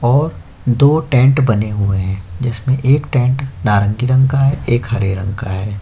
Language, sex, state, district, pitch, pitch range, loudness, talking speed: Hindi, male, Chhattisgarh, Korba, 120 Hz, 100-135 Hz, -15 LUFS, 185 wpm